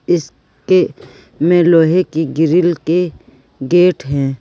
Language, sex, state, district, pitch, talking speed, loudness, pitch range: Hindi, female, Uttar Pradesh, Saharanpur, 160 Hz, 120 wpm, -14 LUFS, 135-175 Hz